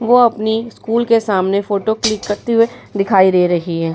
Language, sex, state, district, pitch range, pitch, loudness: Hindi, female, Bihar, Vaishali, 190-230 Hz, 215 Hz, -15 LUFS